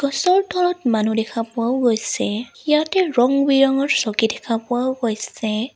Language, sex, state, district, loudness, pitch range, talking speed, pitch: Assamese, female, Assam, Sonitpur, -19 LUFS, 225-280 Hz, 135 wpm, 245 Hz